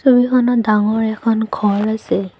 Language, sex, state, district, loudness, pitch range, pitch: Assamese, female, Assam, Kamrup Metropolitan, -16 LUFS, 215-245 Hz, 220 Hz